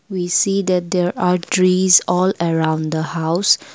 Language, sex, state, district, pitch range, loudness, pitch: English, female, Assam, Kamrup Metropolitan, 165-185 Hz, -17 LUFS, 180 Hz